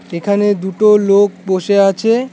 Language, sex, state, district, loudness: Bengali, male, West Bengal, Cooch Behar, -13 LUFS